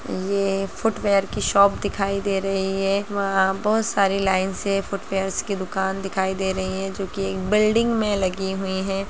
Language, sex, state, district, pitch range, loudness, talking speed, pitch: Hindi, female, Bihar, Gaya, 190-200 Hz, -22 LUFS, 185 wpm, 195 Hz